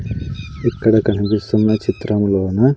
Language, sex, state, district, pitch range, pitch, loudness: Telugu, male, Andhra Pradesh, Sri Satya Sai, 105-115 Hz, 110 Hz, -17 LUFS